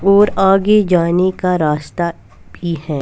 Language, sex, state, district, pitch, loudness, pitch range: Hindi, female, Punjab, Fazilka, 180 Hz, -15 LUFS, 170-195 Hz